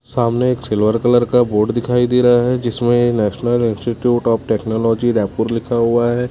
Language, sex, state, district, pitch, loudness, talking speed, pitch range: Hindi, male, Chhattisgarh, Raipur, 120 Hz, -16 LUFS, 180 wpm, 115-120 Hz